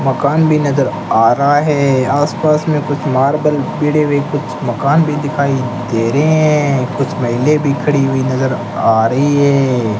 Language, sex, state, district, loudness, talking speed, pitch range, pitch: Hindi, male, Rajasthan, Bikaner, -14 LUFS, 175 wpm, 130-150 Hz, 140 Hz